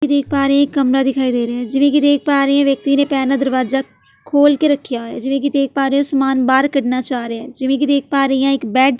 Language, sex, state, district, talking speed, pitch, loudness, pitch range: Punjabi, female, Delhi, New Delhi, 315 wpm, 275 Hz, -16 LUFS, 265-280 Hz